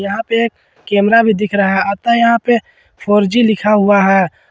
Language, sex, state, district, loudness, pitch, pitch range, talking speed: Hindi, male, Jharkhand, Ranchi, -13 LUFS, 210 Hz, 200-230 Hz, 215 wpm